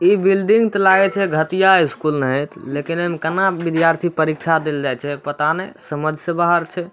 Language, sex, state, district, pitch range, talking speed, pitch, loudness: Maithili, male, Bihar, Samastipur, 155-190 Hz, 200 wpm, 165 Hz, -18 LUFS